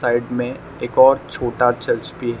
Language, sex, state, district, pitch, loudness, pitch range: Hindi, male, Arunachal Pradesh, Lower Dibang Valley, 125 Hz, -18 LUFS, 120-130 Hz